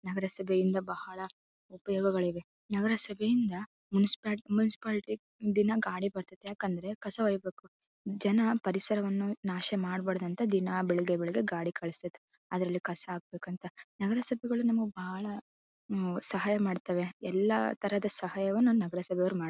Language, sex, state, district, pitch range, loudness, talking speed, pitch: Kannada, female, Karnataka, Bellary, 185-210 Hz, -32 LUFS, 110 wpm, 195 Hz